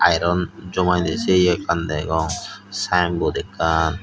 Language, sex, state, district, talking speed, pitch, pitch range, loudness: Chakma, male, Tripura, Dhalai, 120 wpm, 85 Hz, 80-90 Hz, -21 LUFS